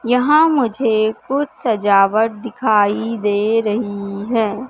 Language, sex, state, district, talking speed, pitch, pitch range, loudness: Hindi, female, Madhya Pradesh, Katni, 100 wpm, 220 Hz, 210-245 Hz, -17 LUFS